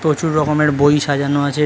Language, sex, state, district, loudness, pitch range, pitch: Bengali, male, West Bengal, Kolkata, -16 LUFS, 145-150 Hz, 150 Hz